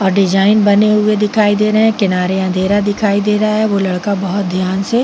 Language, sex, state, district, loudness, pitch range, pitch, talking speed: Hindi, female, Chhattisgarh, Bilaspur, -13 LUFS, 190-210 Hz, 205 Hz, 215 wpm